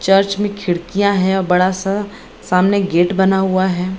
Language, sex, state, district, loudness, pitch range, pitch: Hindi, female, Bihar, Gaya, -16 LUFS, 185-200 Hz, 190 Hz